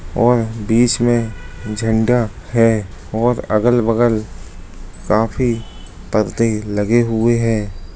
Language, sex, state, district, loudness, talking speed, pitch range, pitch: Hindi, male, Bihar, Lakhisarai, -17 LUFS, 90 wpm, 105-115 Hz, 110 Hz